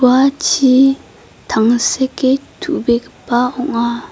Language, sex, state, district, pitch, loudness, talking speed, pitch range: Garo, female, Meghalaya, South Garo Hills, 255 Hz, -14 LUFS, 75 wpm, 240-270 Hz